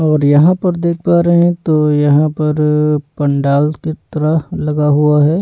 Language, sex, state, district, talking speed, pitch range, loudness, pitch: Hindi, male, Odisha, Nuapada, 175 wpm, 150-165 Hz, -13 LUFS, 150 Hz